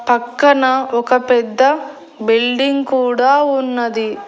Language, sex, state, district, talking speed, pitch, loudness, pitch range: Telugu, female, Andhra Pradesh, Annamaya, 85 wpm, 260 Hz, -15 LUFS, 240-275 Hz